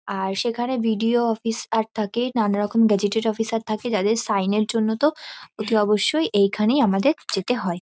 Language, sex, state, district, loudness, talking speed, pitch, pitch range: Bengali, female, West Bengal, North 24 Parganas, -22 LUFS, 170 wpm, 220 Hz, 205-235 Hz